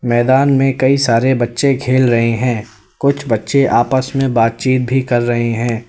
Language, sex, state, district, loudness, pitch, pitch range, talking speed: Hindi, male, Uttar Pradesh, Lalitpur, -14 LUFS, 125 Hz, 115-135 Hz, 175 wpm